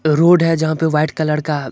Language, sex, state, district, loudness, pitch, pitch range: Hindi, male, Bihar, Supaul, -15 LUFS, 155 Hz, 150-160 Hz